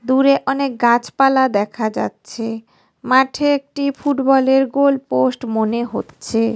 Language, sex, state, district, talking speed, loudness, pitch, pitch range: Bengali, female, West Bengal, North 24 Parganas, 110 wpm, -17 LUFS, 260 Hz, 230-275 Hz